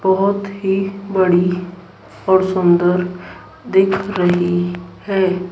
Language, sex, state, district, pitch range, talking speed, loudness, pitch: Hindi, female, Madhya Pradesh, Dhar, 180-195 Hz, 85 wpm, -17 LUFS, 185 Hz